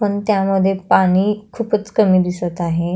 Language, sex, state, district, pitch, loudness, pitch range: Marathi, female, Maharashtra, Pune, 195 Hz, -17 LUFS, 185-210 Hz